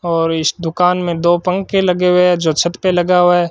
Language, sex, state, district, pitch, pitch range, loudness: Hindi, male, Rajasthan, Bikaner, 175 Hz, 170-180 Hz, -14 LUFS